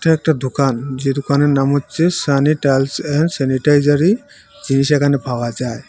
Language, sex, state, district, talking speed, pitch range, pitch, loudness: Bengali, male, Tripura, Unakoti, 155 wpm, 135-150 Hz, 140 Hz, -16 LUFS